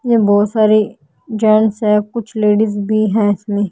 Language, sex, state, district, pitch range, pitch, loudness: Hindi, female, Haryana, Jhajjar, 205-220 Hz, 215 Hz, -14 LUFS